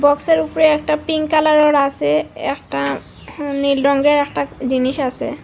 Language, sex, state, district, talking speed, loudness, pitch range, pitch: Bengali, female, Assam, Hailakandi, 130 wpm, -17 LUFS, 260-305 Hz, 285 Hz